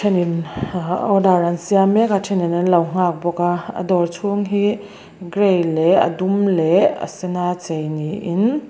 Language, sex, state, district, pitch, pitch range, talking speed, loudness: Mizo, female, Mizoram, Aizawl, 180 Hz, 175-200 Hz, 185 wpm, -18 LUFS